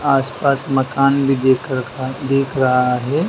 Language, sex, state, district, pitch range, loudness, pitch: Hindi, male, Madhya Pradesh, Dhar, 130-135 Hz, -17 LUFS, 135 Hz